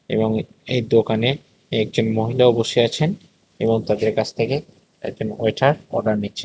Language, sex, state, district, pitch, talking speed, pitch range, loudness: Bengali, male, Tripura, West Tripura, 115 Hz, 140 wpm, 110-125 Hz, -20 LUFS